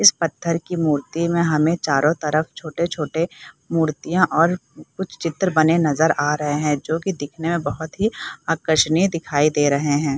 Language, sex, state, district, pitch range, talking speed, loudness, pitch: Hindi, female, Bihar, Saharsa, 150-170 Hz, 185 wpm, -20 LUFS, 160 Hz